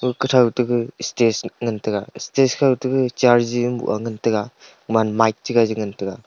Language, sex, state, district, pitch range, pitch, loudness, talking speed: Wancho, male, Arunachal Pradesh, Longding, 110-125 Hz, 120 Hz, -20 LUFS, 165 wpm